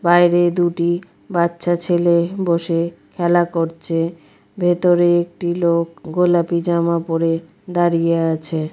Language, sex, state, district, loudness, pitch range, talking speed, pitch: Bengali, female, West Bengal, Dakshin Dinajpur, -18 LUFS, 165-175 Hz, 110 wpm, 170 Hz